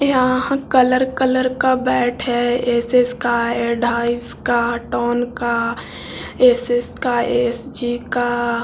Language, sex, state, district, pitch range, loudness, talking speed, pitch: Hindi, male, Bihar, Jahanabad, 240-255 Hz, -18 LUFS, 110 wpm, 245 Hz